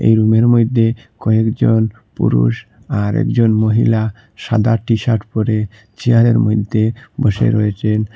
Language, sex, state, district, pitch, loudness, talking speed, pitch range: Bengali, male, Assam, Hailakandi, 110 Hz, -15 LUFS, 125 wpm, 110-115 Hz